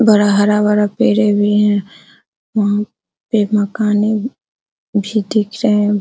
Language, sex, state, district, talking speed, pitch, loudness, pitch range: Hindi, female, Bihar, Araria, 110 wpm, 210 Hz, -15 LUFS, 205-215 Hz